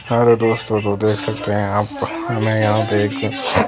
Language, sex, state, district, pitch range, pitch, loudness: Hindi, female, Himachal Pradesh, Shimla, 105-115 Hz, 110 Hz, -18 LUFS